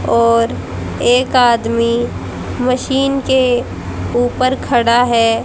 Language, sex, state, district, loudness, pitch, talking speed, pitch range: Hindi, female, Haryana, Jhajjar, -15 LUFS, 245 Hz, 90 wpm, 235-255 Hz